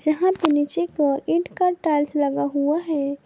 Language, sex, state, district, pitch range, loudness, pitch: Hindi, female, Jharkhand, Garhwa, 285-340 Hz, -22 LUFS, 300 Hz